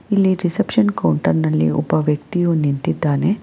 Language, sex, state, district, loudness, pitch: Kannada, female, Karnataka, Bangalore, -18 LUFS, 150 Hz